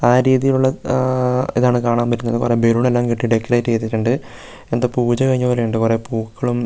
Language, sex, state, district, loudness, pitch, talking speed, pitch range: Malayalam, male, Kerala, Wayanad, -17 LUFS, 120 Hz, 170 wpm, 115-125 Hz